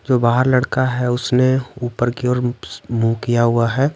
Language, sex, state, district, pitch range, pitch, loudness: Hindi, male, Bihar, Patna, 120-130 Hz, 125 Hz, -18 LUFS